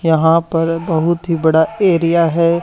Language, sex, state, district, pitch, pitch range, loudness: Hindi, male, Haryana, Charkhi Dadri, 165 Hz, 165-170 Hz, -14 LUFS